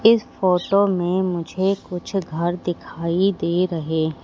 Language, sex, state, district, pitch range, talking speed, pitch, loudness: Hindi, female, Madhya Pradesh, Katni, 170-195 Hz, 125 wpm, 180 Hz, -21 LUFS